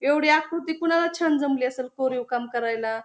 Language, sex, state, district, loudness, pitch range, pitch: Marathi, female, Maharashtra, Pune, -24 LUFS, 245-320 Hz, 270 Hz